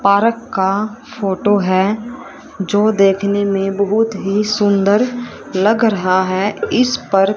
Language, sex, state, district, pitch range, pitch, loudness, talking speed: Hindi, female, Haryana, Rohtak, 195-225 Hz, 205 Hz, -16 LUFS, 120 wpm